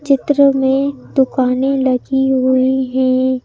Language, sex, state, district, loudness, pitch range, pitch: Hindi, female, Madhya Pradesh, Bhopal, -14 LUFS, 260-270 Hz, 265 Hz